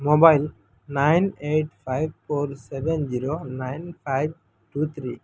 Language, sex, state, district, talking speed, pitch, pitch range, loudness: Bengali, male, Assam, Hailakandi, 135 wpm, 145 Hz, 130-155 Hz, -24 LUFS